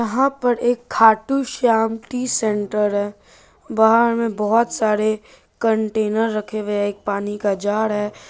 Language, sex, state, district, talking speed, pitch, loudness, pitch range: Hindi, female, Bihar, Saharsa, 150 wpm, 220 Hz, -19 LUFS, 210-230 Hz